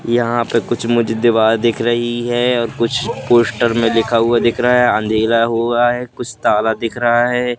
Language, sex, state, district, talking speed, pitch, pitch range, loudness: Hindi, male, Madhya Pradesh, Katni, 195 wpm, 120 Hz, 115-120 Hz, -15 LUFS